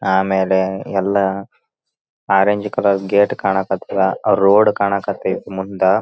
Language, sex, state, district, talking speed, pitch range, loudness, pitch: Kannada, male, Karnataka, Raichur, 100 wpm, 95-100 Hz, -17 LUFS, 95 Hz